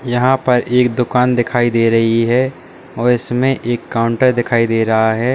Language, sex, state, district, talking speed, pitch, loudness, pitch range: Hindi, male, Uttar Pradesh, Lalitpur, 180 wpm, 120 Hz, -15 LUFS, 115-125 Hz